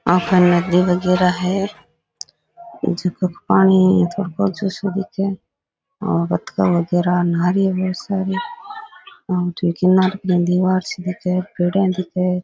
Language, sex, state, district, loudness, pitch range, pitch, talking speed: Rajasthani, male, Rajasthan, Nagaur, -18 LUFS, 180-195 Hz, 185 Hz, 135 wpm